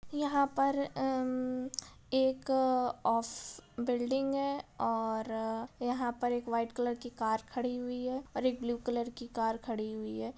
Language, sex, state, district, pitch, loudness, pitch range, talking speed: Hindi, female, Bihar, Gaya, 245 Hz, -34 LUFS, 230-260 Hz, 160 wpm